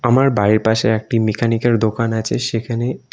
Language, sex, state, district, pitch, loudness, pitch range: Bengali, male, West Bengal, North 24 Parganas, 115 Hz, -17 LUFS, 110-120 Hz